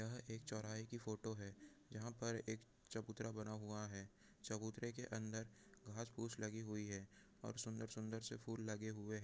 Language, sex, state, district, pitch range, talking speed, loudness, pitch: Hindi, male, Uttar Pradesh, Muzaffarnagar, 110-115 Hz, 180 wpm, -50 LUFS, 110 Hz